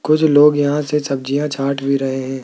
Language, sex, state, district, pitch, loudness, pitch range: Hindi, male, Rajasthan, Jaipur, 140 Hz, -16 LUFS, 135-150 Hz